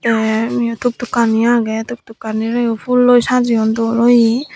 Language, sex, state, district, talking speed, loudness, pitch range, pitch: Chakma, female, Tripura, Dhalai, 160 wpm, -15 LUFS, 225-245 Hz, 230 Hz